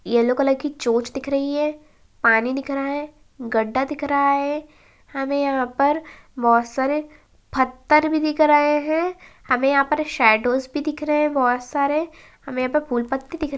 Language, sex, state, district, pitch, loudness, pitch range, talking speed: Kumaoni, male, Uttarakhand, Uttarkashi, 280 Hz, -21 LUFS, 255-300 Hz, 185 wpm